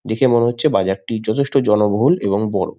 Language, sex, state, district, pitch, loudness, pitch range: Bengali, male, West Bengal, Malda, 110 Hz, -17 LUFS, 105-135 Hz